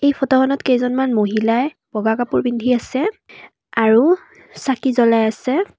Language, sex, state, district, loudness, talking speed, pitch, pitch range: Assamese, female, Assam, Kamrup Metropolitan, -17 LUFS, 125 wpm, 255 Hz, 230-275 Hz